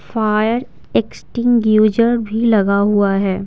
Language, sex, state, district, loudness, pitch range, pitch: Hindi, female, Bihar, Patna, -15 LUFS, 200-230 Hz, 215 Hz